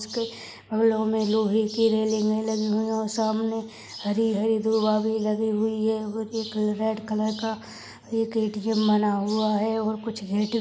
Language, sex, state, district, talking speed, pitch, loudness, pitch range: Hindi, female, Rajasthan, Churu, 145 wpm, 220 Hz, -25 LUFS, 215-220 Hz